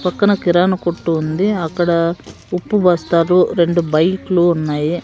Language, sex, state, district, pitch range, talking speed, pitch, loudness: Telugu, female, Andhra Pradesh, Sri Satya Sai, 165-180 Hz, 120 wpm, 175 Hz, -16 LUFS